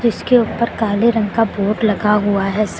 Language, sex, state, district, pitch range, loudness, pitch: Hindi, female, Uttar Pradesh, Lucknow, 205-230 Hz, -16 LUFS, 215 Hz